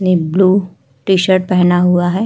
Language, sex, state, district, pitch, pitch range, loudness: Hindi, female, Uttar Pradesh, Hamirpur, 185 Hz, 180-190 Hz, -13 LUFS